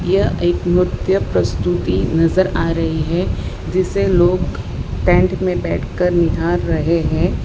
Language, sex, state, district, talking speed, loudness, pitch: Hindi, female, Gujarat, Valsad, 130 wpm, -17 LUFS, 165 Hz